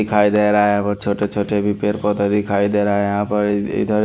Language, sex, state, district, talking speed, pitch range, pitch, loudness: Hindi, male, Haryana, Charkhi Dadri, 250 wpm, 100-105 Hz, 105 Hz, -18 LUFS